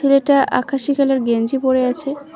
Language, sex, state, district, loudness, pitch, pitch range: Bengali, female, West Bengal, Cooch Behar, -17 LUFS, 275 Hz, 260-280 Hz